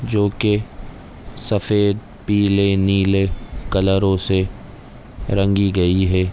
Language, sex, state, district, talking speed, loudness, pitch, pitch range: Hindi, male, Chhattisgarh, Raigarh, 105 wpm, -18 LUFS, 100 Hz, 95-105 Hz